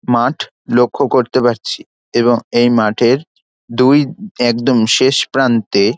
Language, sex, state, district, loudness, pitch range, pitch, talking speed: Bengali, male, West Bengal, Dakshin Dinajpur, -14 LUFS, 120-130 Hz, 120 Hz, 110 wpm